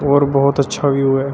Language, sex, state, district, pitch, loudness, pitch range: Hindi, male, Uttar Pradesh, Shamli, 140 Hz, -15 LUFS, 135-140 Hz